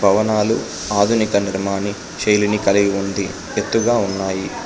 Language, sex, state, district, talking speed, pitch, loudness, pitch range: Telugu, male, Telangana, Hyderabad, 105 wpm, 100 Hz, -18 LUFS, 100-105 Hz